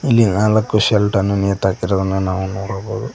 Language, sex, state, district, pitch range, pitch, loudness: Kannada, male, Karnataka, Koppal, 95-110 Hz, 100 Hz, -17 LUFS